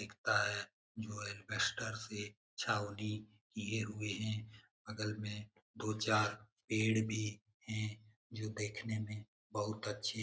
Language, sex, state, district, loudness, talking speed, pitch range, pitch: Hindi, male, Bihar, Lakhisarai, -40 LUFS, 125 wpm, 105-110 Hz, 110 Hz